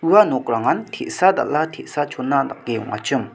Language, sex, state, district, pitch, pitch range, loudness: Garo, male, Meghalaya, South Garo Hills, 145 Hz, 135-180 Hz, -20 LUFS